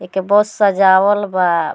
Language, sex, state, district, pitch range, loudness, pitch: Bhojpuri, female, Bihar, Muzaffarpur, 185-205 Hz, -14 LUFS, 195 Hz